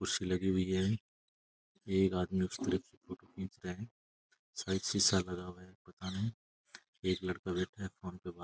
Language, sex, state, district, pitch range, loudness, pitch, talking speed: Rajasthani, male, Rajasthan, Churu, 90-95 Hz, -36 LUFS, 95 Hz, 165 wpm